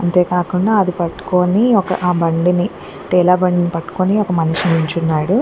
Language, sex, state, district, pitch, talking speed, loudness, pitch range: Telugu, female, Andhra Pradesh, Guntur, 180 Hz, 120 wpm, -16 LUFS, 170-185 Hz